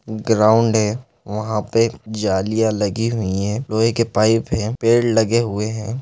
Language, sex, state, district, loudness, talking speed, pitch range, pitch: Hindi, male, Chhattisgarh, Balrampur, -18 LUFS, 160 wpm, 105-115 Hz, 110 Hz